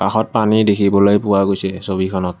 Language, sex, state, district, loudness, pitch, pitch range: Assamese, male, Assam, Kamrup Metropolitan, -16 LUFS, 100 Hz, 95-105 Hz